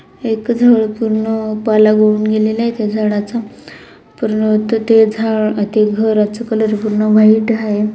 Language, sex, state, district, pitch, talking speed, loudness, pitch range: Marathi, female, Maharashtra, Dhule, 215 Hz, 130 wpm, -14 LUFS, 215-220 Hz